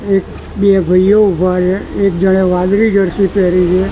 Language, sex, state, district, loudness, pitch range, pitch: Gujarati, male, Gujarat, Gandhinagar, -12 LUFS, 185-200 Hz, 190 Hz